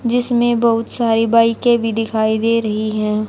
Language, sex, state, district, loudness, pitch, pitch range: Hindi, female, Haryana, Jhajjar, -16 LUFS, 230 Hz, 220-235 Hz